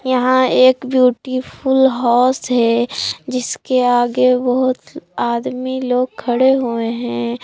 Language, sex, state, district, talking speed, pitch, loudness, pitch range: Hindi, female, Jharkhand, Palamu, 105 wpm, 255 Hz, -16 LUFS, 240-255 Hz